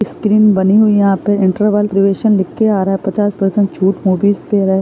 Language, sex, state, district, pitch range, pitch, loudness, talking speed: Hindi, female, Chhattisgarh, Sarguja, 195-210 Hz, 200 Hz, -13 LUFS, 200 wpm